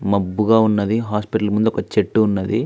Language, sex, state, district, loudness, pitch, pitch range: Telugu, male, Andhra Pradesh, Visakhapatnam, -18 LUFS, 105 Hz, 100-110 Hz